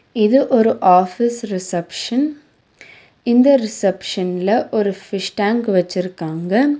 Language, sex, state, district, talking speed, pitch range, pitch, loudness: Tamil, female, Tamil Nadu, Nilgiris, 90 wpm, 185-235 Hz, 205 Hz, -17 LUFS